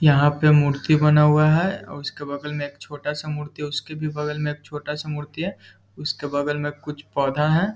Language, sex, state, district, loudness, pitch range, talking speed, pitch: Hindi, male, Bihar, Muzaffarpur, -22 LUFS, 145-150 Hz, 225 wpm, 150 Hz